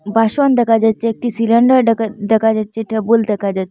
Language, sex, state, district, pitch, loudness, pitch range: Bengali, female, Assam, Hailakandi, 225 Hz, -15 LUFS, 215-230 Hz